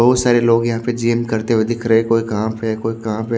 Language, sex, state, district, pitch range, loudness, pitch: Hindi, male, Haryana, Jhajjar, 110-120 Hz, -17 LUFS, 115 Hz